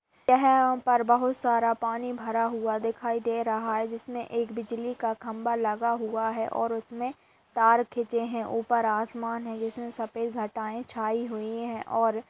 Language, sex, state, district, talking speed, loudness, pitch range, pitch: Hindi, female, Uttar Pradesh, Budaun, 170 wpm, -28 LUFS, 225-235 Hz, 230 Hz